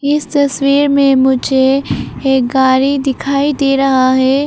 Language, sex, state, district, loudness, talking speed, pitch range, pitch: Hindi, female, Arunachal Pradesh, Papum Pare, -12 LUFS, 135 wpm, 265-280 Hz, 275 Hz